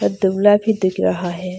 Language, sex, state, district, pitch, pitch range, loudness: Hindi, female, Bihar, Darbhanga, 185 Hz, 175-205 Hz, -17 LUFS